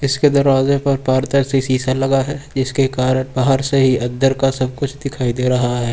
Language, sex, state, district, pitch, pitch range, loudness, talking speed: Hindi, male, Uttar Pradesh, Lucknow, 135 Hz, 130-140 Hz, -17 LUFS, 200 wpm